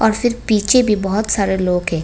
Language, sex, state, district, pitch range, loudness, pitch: Hindi, female, Tripura, West Tripura, 190-220 Hz, -16 LUFS, 210 Hz